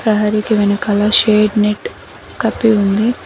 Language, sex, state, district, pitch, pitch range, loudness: Telugu, female, Telangana, Mahabubabad, 210 Hz, 210-220 Hz, -14 LUFS